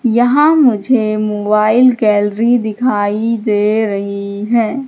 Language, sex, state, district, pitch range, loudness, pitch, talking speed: Hindi, female, Madhya Pradesh, Katni, 210-245 Hz, -13 LUFS, 215 Hz, 100 wpm